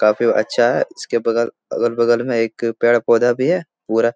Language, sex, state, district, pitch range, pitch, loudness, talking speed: Hindi, male, Bihar, Jahanabad, 115-120 Hz, 115 Hz, -18 LUFS, 200 wpm